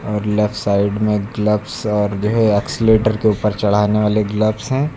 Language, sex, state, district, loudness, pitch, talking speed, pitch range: Hindi, male, Uttar Pradesh, Lucknow, -17 LUFS, 105 Hz, 180 wpm, 105-110 Hz